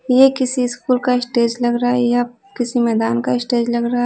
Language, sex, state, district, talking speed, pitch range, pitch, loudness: Hindi, female, Odisha, Nuapada, 205 wpm, 240-250 Hz, 245 Hz, -17 LUFS